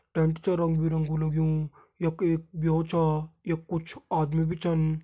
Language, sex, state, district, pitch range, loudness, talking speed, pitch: Garhwali, male, Uttarakhand, Tehri Garhwal, 155-165 Hz, -28 LUFS, 180 wpm, 160 Hz